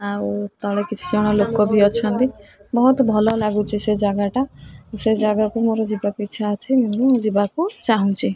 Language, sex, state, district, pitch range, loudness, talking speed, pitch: Odia, female, Odisha, Khordha, 205-225 Hz, -19 LUFS, 150 wpm, 210 Hz